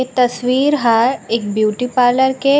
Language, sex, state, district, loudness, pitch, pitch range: Chhattisgarhi, female, Chhattisgarh, Raigarh, -15 LUFS, 250 Hz, 235-265 Hz